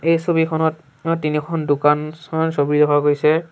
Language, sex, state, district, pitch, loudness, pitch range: Assamese, male, Assam, Sonitpur, 155 Hz, -18 LUFS, 150-160 Hz